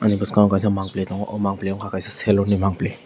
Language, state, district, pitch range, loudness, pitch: Kokborok, Tripura, West Tripura, 95-105 Hz, -21 LUFS, 100 Hz